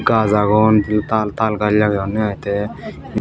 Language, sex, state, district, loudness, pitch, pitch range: Chakma, female, Tripura, Unakoti, -17 LUFS, 105 Hz, 105-110 Hz